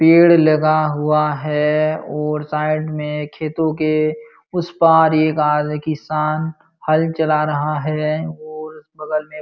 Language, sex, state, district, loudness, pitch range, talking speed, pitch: Hindi, male, Uttar Pradesh, Jalaun, -17 LUFS, 150-155 Hz, 140 wpm, 155 Hz